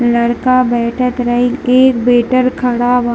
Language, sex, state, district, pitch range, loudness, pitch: Hindi, female, Bihar, Darbhanga, 240-255 Hz, -12 LUFS, 245 Hz